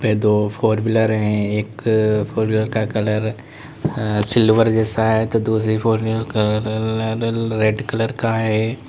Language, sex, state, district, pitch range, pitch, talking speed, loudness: Hindi, male, Uttar Pradesh, Lalitpur, 110-115 Hz, 110 Hz, 155 wpm, -19 LUFS